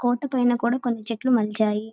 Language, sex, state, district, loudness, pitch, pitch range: Telugu, female, Andhra Pradesh, Guntur, -23 LUFS, 240 Hz, 220-245 Hz